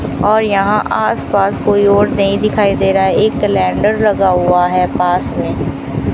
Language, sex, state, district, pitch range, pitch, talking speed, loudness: Hindi, female, Rajasthan, Bikaner, 190-210 Hz, 200 Hz, 155 wpm, -13 LUFS